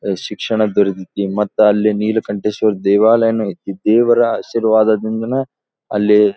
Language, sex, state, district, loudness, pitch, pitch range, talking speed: Kannada, male, Karnataka, Dharwad, -15 LUFS, 105 Hz, 105-110 Hz, 115 wpm